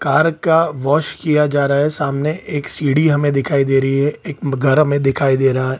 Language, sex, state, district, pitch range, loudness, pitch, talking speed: Hindi, male, Bihar, Gaya, 135-150 Hz, -16 LUFS, 145 Hz, 240 wpm